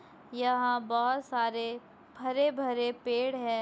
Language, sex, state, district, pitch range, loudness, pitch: Hindi, female, Chhattisgarh, Bastar, 235-255 Hz, -31 LUFS, 245 Hz